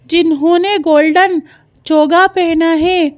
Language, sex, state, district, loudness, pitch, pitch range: Hindi, female, Madhya Pradesh, Bhopal, -11 LUFS, 335 Hz, 315-360 Hz